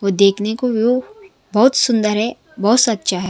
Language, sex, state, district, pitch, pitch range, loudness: Hindi, female, Punjab, Kapurthala, 220 Hz, 200-250 Hz, -16 LUFS